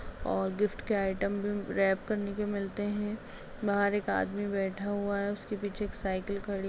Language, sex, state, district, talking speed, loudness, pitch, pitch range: Hindi, female, Bihar, Begusarai, 195 wpm, -32 LUFS, 200 Hz, 195-205 Hz